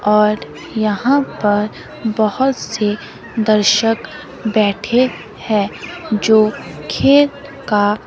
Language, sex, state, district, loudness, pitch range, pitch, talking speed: Hindi, female, Himachal Pradesh, Shimla, -16 LUFS, 210-235 Hz, 215 Hz, 80 wpm